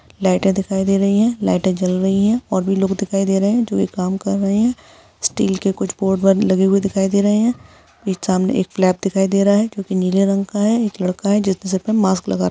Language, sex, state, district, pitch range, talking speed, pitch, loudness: Hindi, female, Bihar, Jahanabad, 190-205 Hz, 240 wpm, 195 Hz, -17 LUFS